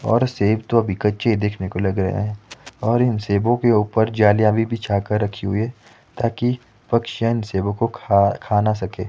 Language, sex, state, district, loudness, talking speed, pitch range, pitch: Hindi, male, Himachal Pradesh, Shimla, -20 LUFS, 200 wpm, 105-115 Hz, 110 Hz